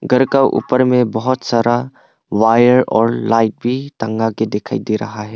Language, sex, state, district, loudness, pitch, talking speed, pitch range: Hindi, male, Arunachal Pradesh, Papum Pare, -15 LUFS, 120 Hz, 180 wpm, 110-130 Hz